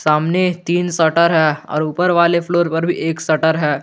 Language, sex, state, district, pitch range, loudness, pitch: Hindi, male, Jharkhand, Garhwa, 155-175 Hz, -16 LUFS, 165 Hz